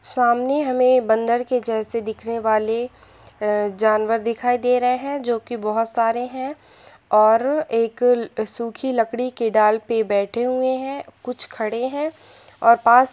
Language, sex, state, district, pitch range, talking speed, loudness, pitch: Hindi, female, Uttar Pradesh, Jalaun, 220-250 Hz, 145 wpm, -20 LUFS, 235 Hz